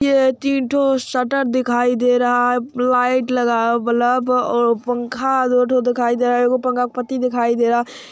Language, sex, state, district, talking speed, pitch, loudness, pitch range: Hindi, male, Bihar, Araria, 215 wpm, 250 Hz, -17 LUFS, 245-255 Hz